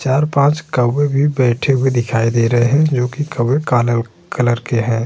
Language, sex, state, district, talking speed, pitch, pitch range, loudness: Hindi, male, Uttar Pradesh, Hamirpur, 190 wpm, 125 Hz, 120-140 Hz, -16 LUFS